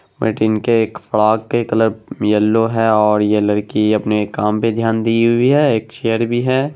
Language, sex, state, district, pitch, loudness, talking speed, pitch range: Hindi, male, Bihar, Araria, 110 Hz, -16 LUFS, 175 wpm, 105-115 Hz